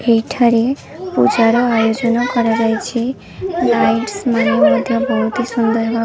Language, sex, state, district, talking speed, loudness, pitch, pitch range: Odia, female, Odisha, Sambalpur, 130 wpm, -15 LUFS, 235 Hz, 225-245 Hz